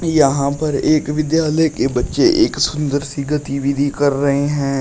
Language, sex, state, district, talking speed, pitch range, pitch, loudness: Hindi, male, Uttar Pradesh, Shamli, 160 wpm, 140-155 Hz, 145 Hz, -17 LUFS